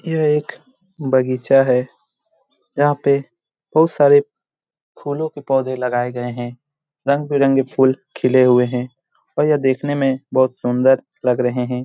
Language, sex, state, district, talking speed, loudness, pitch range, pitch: Hindi, male, Bihar, Jamui, 140 wpm, -18 LUFS, 125-145 Hz, 135 Hz